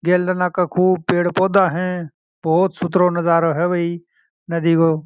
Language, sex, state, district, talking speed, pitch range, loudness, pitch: Marwari, male, Rajasthan, Churu, 165 wpm, 170-180 Hz, -18 LUFS, 175 Hz